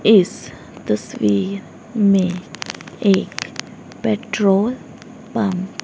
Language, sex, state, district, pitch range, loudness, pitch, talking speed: Hindi, female, Haryana, Rohtak, 190-220 Hz, -19 LUFS, 200 Hz, 70 wpm